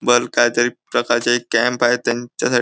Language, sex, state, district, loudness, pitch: Marathi, male, Maharashtra, Nagpur, -18 LUFS, 120 Hz